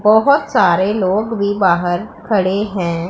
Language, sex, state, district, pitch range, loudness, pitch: Hindi, female, Punjab, Pathankot, 185-215 Hz, -15 LUFS, 200 Hz